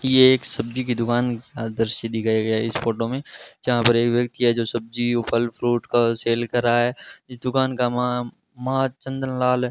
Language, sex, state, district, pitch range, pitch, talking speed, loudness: Hindi, male, Rajasthan, Bikaner, 115-125 Hz, 120 Hz, 205 wpm, -22 LUFS